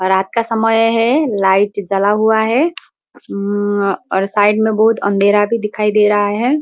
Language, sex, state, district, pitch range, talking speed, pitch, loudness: Hindi, female, Bihar, Muzaffarpur, 200-225 Hz, 200 wpm, 210 Hz, -14 LUFS